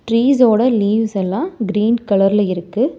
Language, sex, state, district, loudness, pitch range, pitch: Tamil, male, Tamil Nadu, Chennai, -16 LUFS, 200-235 Hz, 215 Hz